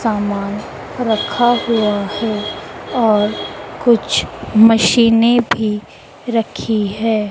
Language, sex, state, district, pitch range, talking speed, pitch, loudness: Hindi, female, Madhya Pradesh, Dhar, 210-230 Hz, 80 wpm, 220 Hz, -16 LUFS